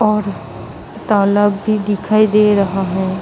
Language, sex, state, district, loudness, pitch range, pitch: Hindi, female, Maharashtra, Mumbai Suburban, -15 LUFS, 195-210 Hz, 205 Hz